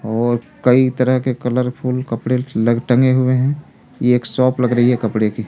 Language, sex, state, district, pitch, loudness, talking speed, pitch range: Hindi, male, Delhi, New Delhi, 125 Hz, -17 LUFS, 210 wpm, 120-130 Hz